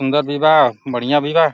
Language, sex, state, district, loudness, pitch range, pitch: Hindi, male, Uttar Pradesh, Deoria, -15 LUFS, 135-155 Hz, 145 Hz